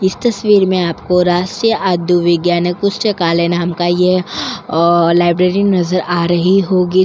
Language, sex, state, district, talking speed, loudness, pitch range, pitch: Hindi, female, Delhi, New Delhi, 145 wpm, -13 LUFS, 175-190 Hz, 180 Hz